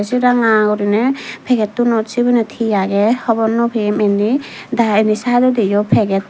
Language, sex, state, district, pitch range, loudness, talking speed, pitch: Chakma, female, Tripura, Dhalai, 210-240 Hz, -15 LUFS, 150 wpm, 225 Hz